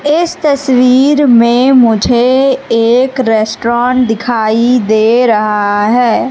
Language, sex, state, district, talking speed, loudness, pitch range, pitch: Hindi, female, Madhya Pradesh, Katni, 95 wpm, -10 LUFS, 225-260 Hz, 245 Hz